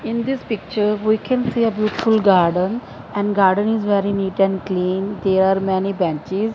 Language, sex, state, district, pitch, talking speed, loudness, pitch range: English, female, Punjab, Fazilka, 200 Hz, 185 wpm, -19 LUFS, 190-220 Hz